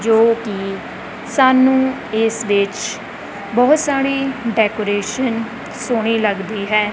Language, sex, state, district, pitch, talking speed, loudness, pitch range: Punjabi, female, Punjab, Kapurthala, 225 Hz, 95 wpm, -17 LUFS, 210-260 Hz